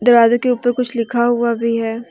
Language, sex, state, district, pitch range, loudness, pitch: Hindi, female, Jharkhand, Deoghar, 230-245 Hz, -16 LUFS, 235 Hz